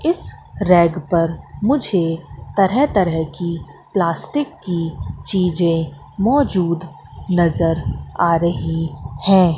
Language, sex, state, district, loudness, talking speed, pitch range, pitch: Hindi, female, Madhya Pradesh, Katni, -18 LUFS, 95 wpm, 165-190 Hz, 170 Hz